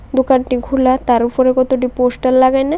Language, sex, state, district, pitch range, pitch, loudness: Bengali, female, Tripura, West Tripura, 250-265 Hz, 255 Hz, -14 LUFS